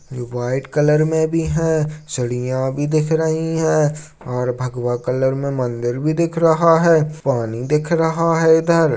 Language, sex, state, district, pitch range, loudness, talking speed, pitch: Hindi, male, Chhattisgarh, Raigarh, 130-160 Hz, -18 LUFS, 160 wpm, 150 Hz